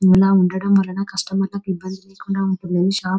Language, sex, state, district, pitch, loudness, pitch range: Telugu, female, Telangana, Nalgonda, 190 Hz, -19 LUFS, 185-195 Hz